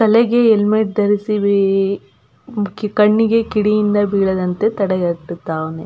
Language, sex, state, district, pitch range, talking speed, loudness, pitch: Kannada, female, Karnataka, Belgaum, 195-220 Hz, 80 wpm, -16 LUFS, 205 Hz